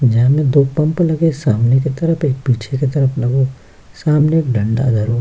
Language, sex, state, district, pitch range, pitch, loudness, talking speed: Hindi, male, Bihar, Kishanganj, 125-150 Hz, 135 Hz, -15 LUFS, 195 wpm